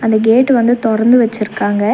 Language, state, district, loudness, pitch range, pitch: Tamil, Tamil Nadu, Nilgiris, -12 LUFS, 220-240 Hz, 225 Hz